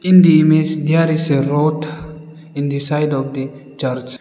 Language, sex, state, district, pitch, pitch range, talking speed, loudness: English, male, Arunachal Pradesh, Lower Dibang Valley, 155 Hz, 140-160 Hz, 185 wpm, -16 LUFS